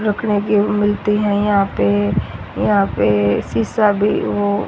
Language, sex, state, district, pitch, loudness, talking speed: Hindi, female, Haryana, Rohtak, 205 Hz, -17 LUFS, 140 wpm